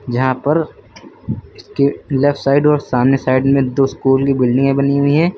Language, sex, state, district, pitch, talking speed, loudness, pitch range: Hindi, male, Uttar Pradesh, Lucknow, 135 Hz, 180 wpm, -15 LUFS, 130-140 Hz